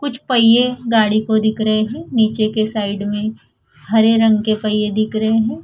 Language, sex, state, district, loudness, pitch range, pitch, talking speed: Hindi, female, Punjab, Fazilka, -16 LUFS, 215-225 Hz, 220 Hz, 190 wpm